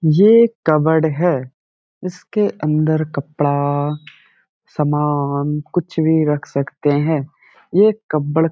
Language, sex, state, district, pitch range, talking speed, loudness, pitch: Hindi, male, Bihar, Gaya, 145-170 Hz, 105 wpm, -17 LUFS, 155 Hz